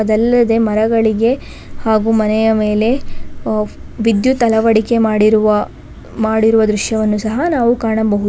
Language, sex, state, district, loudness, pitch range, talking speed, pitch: Kannada, female, Karnataka, Bangalore, -14 LUFS, 215-230 Hz, 95 wpm, 220 Hz